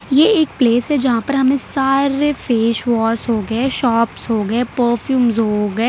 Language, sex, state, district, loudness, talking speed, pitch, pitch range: Hindi, female, Gujarat, Valsad, -16 LUFS, 185 wpm, 240 Hz, 230-270 Hz